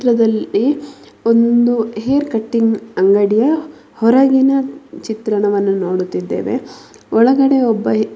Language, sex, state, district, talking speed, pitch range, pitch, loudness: Kannada, female, Karnataka, Mysore, 90 wpm, 215-270 Hz, 230 Hz, -15 LUFS